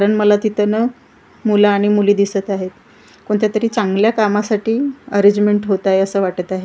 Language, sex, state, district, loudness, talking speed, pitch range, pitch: Marathi, female, Maharashtra, Gondia, -16 LUFS, 160 wpm, 200-215 Hz, 205 Hz